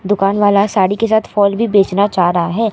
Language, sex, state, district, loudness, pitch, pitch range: Hindi, female, Maharashtra, Mumbai Suburban, -13 LUFS, 205 Hz, 195-215 Hz